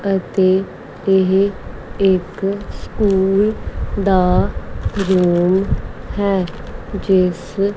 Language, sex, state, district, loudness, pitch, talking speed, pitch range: Punjabi, female, Punjab, Kapurthala, -17 LUFS, 195 Hz, 60 wpm, 185-200 Hz